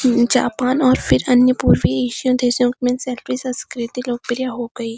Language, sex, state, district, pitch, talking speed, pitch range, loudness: Hindi, female, Uttarakhand, Uttarkashi, 250 Hz, 110 wpm, 245-255 Hz, -18 LUFS